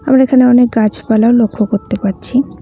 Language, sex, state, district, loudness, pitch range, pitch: Bengali, female, West Bengal, Cooch Behar, -12 LUFS, 215-255 Hz, 230 Hz